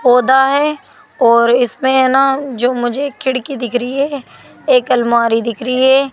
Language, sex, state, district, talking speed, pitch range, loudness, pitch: Hindi, female, Rajasthan, Jaipur, 175 wpm, 245-270 Hz, -14 LUFS, 260 Hz